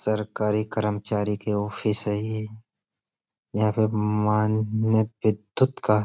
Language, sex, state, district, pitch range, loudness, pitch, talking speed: Hindi, male, Uttar Pradesh, Budaun, 105-110 Hz, -25 LUFS, 105 Hz, 110 wpm